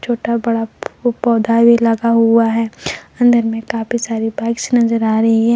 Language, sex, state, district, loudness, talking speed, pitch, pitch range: Hindi, female, Jharkhand, Palamu, -15 LUFS, 170 wpm, 230 Hz, 225-235 Hz